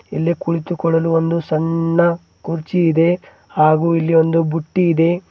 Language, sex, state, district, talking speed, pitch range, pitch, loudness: Kannada, male, Karnataka, Bidar, 125 wpm, 165-170 Hz, 165 Hz, -17 LUFS